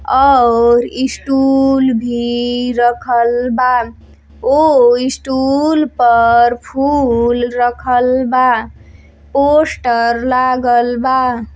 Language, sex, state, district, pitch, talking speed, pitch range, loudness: Bhojpuri, female, Uttar Pradesh, Deoria, 245 Hz, 80 wpm, 240-265 Hz, -13 LUFS